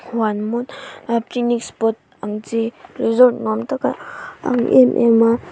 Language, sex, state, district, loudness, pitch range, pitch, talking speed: Mizo, female, Mizoram, Aizawl, -18 LUFS, 225-245 Hz, 235 Hz, 165 wpm